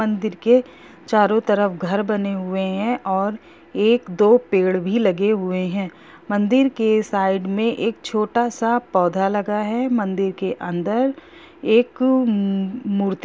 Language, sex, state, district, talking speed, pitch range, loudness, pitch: Hindi, female, Bihar, Gopalganj, 145 wpm, 195-230 Hz, -20 LUFS, 210 Hz